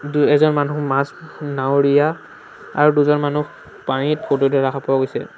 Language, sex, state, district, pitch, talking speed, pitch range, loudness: Assamese, male, Assam, Sonitpur, 145 Hz, 155 wpm, 135-150 Hz, -18 LUFS